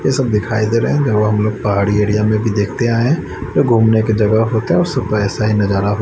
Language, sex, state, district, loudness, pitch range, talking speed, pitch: Hindi, male, Chandigarh, Chandigarh, -15 LUFS, 105-115 Hz, 260 wpm, 110 Hz